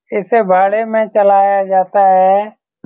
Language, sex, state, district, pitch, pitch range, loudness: Hindi, male, Bihar, Saran, 200 Hz, 190-215 Hz, -12 LUFS